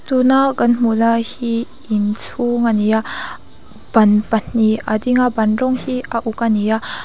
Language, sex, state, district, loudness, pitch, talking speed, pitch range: Mizo, female, Mizoram, Aizawl, -17 LUFS, 230 Hz, 170 wpm, 220-250 Hz